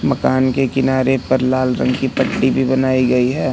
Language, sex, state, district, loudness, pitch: Hindi, male, Madhya Pradesh, Katni, -16 LUFS, 130 Hz